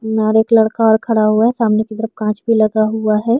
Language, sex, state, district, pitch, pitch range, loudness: Hindi, female, Chhattisgarh, Korba, 220 Hz, 215-225 Hz, -14 LUFS